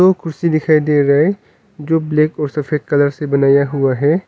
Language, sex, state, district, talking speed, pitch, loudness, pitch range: Hindi, male, Arunachal Pradesh, Longding, 210 wpm, 150 Hz, -15 LUFS, 145-160 Hz